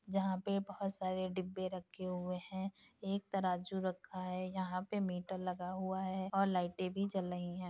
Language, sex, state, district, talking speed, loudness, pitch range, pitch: Hindi, female, Bihar, Jahanabad, 185 wpm, -40 LUFS, 185-195 Hz, 185 Hz